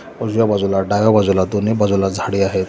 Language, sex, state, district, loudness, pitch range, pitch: Marathi, male, Maharashtra, Solapur, -16 LUFS, 95-105 Hz, 100 Hz